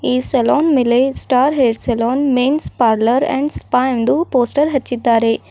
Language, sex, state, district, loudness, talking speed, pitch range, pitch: Kannada, female, Karnataka, Bidar, -15 LUFS, 140 wpm, 240-275 Hz, 255 Hz